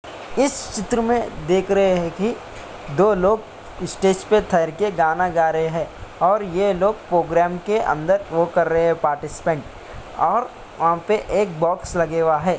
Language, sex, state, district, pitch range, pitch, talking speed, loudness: Hindi, male, Bihar, Samastipur, 165-200 Hz, 180 Hz, 165 wpm, -20 LUFS